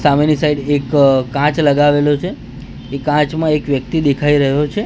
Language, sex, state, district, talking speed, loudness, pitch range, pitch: Gujarati, male, Gujarat, Gandhinagar, 175 wpm, -14 LUFS, 140-150 Hz, 145 Hz